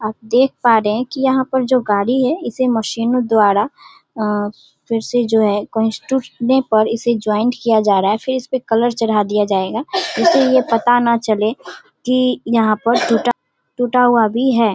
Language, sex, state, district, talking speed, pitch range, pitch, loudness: Hindi, female, Bihar, Darbhanga, 185 wpm, 215-255 Hz, 235 Hz, -16 LUFS